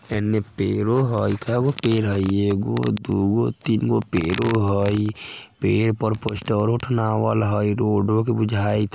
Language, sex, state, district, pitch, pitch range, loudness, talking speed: Maithili, male, Bihar, Vaishali, 110 Hz, 100-115 Hz, -21 LUFS, 125 wpm